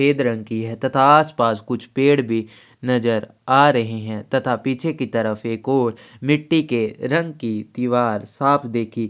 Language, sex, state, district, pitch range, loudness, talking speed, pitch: Hindi, male, Chhattisgarh, Kabirdham, 115-135 Hz, -20 LUFS, 170 wpm, 120 Hz